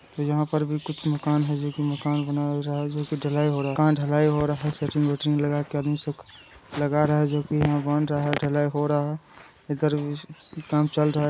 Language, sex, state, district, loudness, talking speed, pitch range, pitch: Hindi, male, Bihar, Araria, -25 LUFS, 240 wpm, 145-150 Hz, 150 Hz